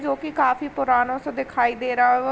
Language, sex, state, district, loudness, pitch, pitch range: Hindi, female, Uttar Pradesh, Varanasi, -22 LUFS, 255 Hz, 245-280 Hz